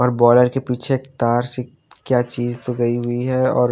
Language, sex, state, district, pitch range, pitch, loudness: Hindi, male, Haryana, Jhajjar, 120-130 Hz, 125 Hz, -19 LUFS